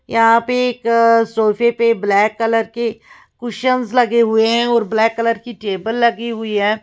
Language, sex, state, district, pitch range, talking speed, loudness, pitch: Hindi, female, Uttar Pradesh, Lalitpur, 220-235 Hz, 175 wpm, -16 LUFS, 230 Hz